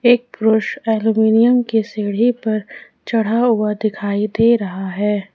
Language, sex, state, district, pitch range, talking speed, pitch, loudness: Hindi, female, Jharkhand, Ranchi, 210-235 Hz, 135 wpm, 220 Hz, -17 LUFS